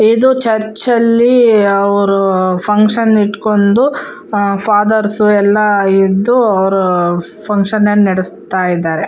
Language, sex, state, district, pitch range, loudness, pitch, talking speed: Kannada, female, Karnataka, Shimoga, 195-220 Hz, -11 LUFS, 205 Hz, 95 wpm